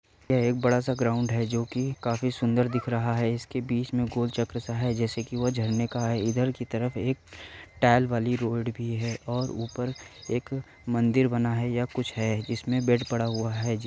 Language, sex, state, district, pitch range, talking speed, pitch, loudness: Hindi, male, Uttar Pradesh, Varanasi, 115-125 Hz, 210 wpm, 120 Hz, -28 LUFS